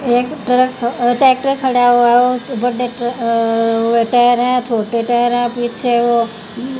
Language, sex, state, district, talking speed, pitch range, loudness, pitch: Hindi, female, Haryana, Jhajjar, 130 wpm, 235-250 Hz, -14 LUFS, 245 Hz